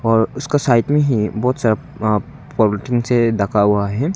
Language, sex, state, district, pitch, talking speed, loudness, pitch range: Hindi, male, Arunachal Pradesh, Longding, 115 Hz, 185 wpm, -17 LUFS, 105-135 Hz